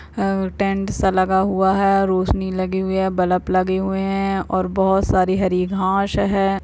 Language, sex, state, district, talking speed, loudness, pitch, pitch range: Hindi, female, Uttar Pradesh, Jyotiba Phule Nagar, 170 wpm, -19 LUFS, 190 Hz, 185-195 Hz